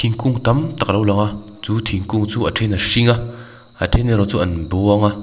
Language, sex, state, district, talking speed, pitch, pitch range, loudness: Mizo, male, Mizoram, Aizawl, 250 wpm, 105 Hz, 105-115 Hz, -17 LUFS